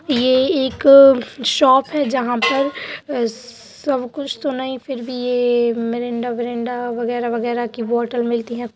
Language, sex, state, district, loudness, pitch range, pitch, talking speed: Hindi, female, Uttar Pradesh, Budaun, -18 LUFS, 240-265 Hz, 245 Hz, 125 wpm